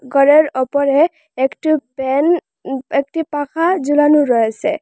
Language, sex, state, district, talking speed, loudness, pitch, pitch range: Bengali, female, Assam, Hailakandi, 110 wpm, -16 LUFS, 290 Hz, 270-310 Hz